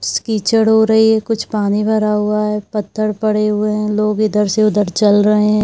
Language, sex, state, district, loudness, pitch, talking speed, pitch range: Hindi, female, Jharkhand, Jamtara, -15 LUFS, 210 Hz, 225 wpm, 210-220 Hz